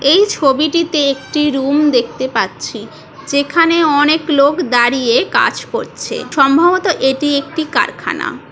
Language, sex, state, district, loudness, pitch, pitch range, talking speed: Bengali, female, West Bengal, Kolkata, -14 LUFS, 290 Hz, 275-330 Hz, 125 wpm